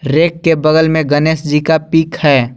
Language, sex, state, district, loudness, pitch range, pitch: Hindi, male, Jharkhand, Garhwa, -12 LUFS, 150-160 Hz, 160 Hz